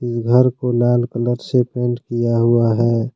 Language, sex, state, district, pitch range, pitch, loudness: Hindi, male, Jharkhand, Deoghar, 120-125 Hz, 120 Hz, -17 LUFS